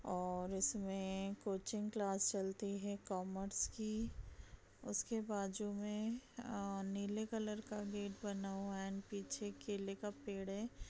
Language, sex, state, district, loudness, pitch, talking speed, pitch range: Hindi, female, Bihar, Samastipur, -43 LUFS, 200 Hz, 140 wpm, 195-210 Hz